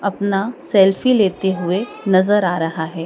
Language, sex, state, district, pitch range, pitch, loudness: Hindi, female, Madhya Pradesh, Dhar, 180-205 Hz, 195 Hz, -17 LUFS